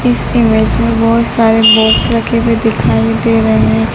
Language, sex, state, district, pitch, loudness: Hindi, female, Madhya Pradesh, Dhar, 225 Hz, -10 LUFS